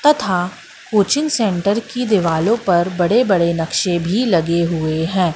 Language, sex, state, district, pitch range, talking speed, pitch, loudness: Hindi, female, Madhya Pradesh, Katni, 170-220 Hz, 145 wpm, 185 Hz, -17 LUFS